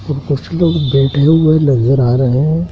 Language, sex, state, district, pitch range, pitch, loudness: Hindi, male, Madhya Pradesh, Dhar, 135-155 Hz, 145 Hz, -12 LUFS